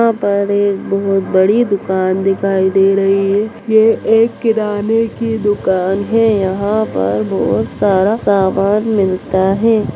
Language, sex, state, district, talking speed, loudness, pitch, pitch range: Hindi, female, Bihar, Bhagalpur, 140 wpm, -14 LUFS, 200 Hz, 195-220 Hz